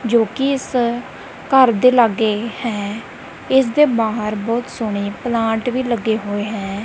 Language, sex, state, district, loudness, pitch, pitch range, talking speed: Punjabi, female, Punjab, Kapurthala, -18 LUFS, 230 Hz, 215-245 Hz, 140 wpm